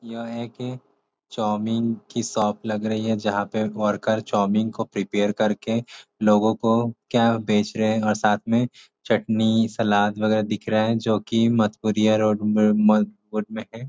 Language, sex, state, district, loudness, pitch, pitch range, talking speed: Hindi, male, Uttar Pradesh, Ghazipur, -22 LUFS, 110 Hz, 105-115 Hz, 150 wpm